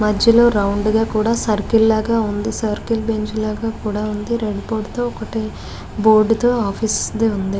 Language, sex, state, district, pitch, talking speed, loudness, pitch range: Telugu, female, Andhra Pradesh, Guntur, 220 Hz, 140 wpm, -18 LUFS, 210-225 Hz